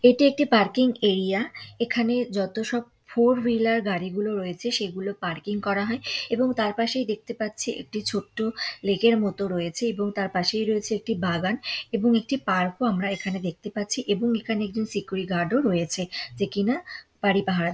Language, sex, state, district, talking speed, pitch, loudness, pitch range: Bengali, female, West Bengal, Purulia, 180 wpm, 210 Hz, -25 LUFS, 195-235 Hz